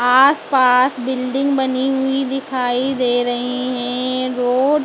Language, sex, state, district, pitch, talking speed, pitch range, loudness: Hindi, female, Maharashtra, Mumbai Suburban, 255 Hz, 125 wpm, 250-270 Hz, -17 LUFS